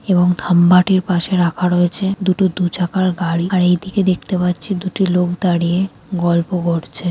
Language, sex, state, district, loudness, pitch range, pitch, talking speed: Bengali, female, West Bengal, Jalpaiguri, -16 LUFS, 175-185 Hz, 180 Hz, 160 wpm